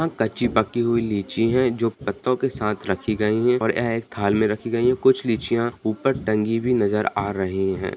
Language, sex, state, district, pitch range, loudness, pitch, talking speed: Hindi, male, Bihar, Kishanganj, 105-120 Hz, -22 LUFS, 115 Hz, 220 wpm